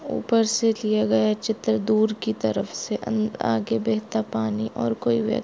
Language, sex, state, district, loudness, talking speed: Hindi, female, Jharkhand, Jamtara, -24 LUFS, 175 wpm